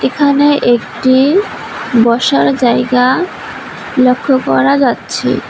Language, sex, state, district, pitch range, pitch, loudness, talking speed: Bengali, female, West Bengal, Cooch Behar, 240-280 Hz, 255 Hz, -11 LUFS, 75 wpm